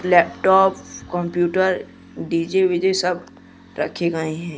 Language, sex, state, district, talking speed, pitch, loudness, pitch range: Hindi, male, Jharkhand, Deoghar, 105 wpm, 175 Hz, -20 LUFS, 170-185 Hz